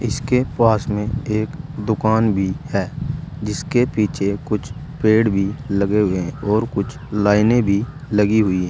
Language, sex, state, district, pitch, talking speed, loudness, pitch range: Hindi, male, Uttar Pradesh, Saharanpur, 110 Hz, 145 wpm, -19 LUFS, 105-120 Hz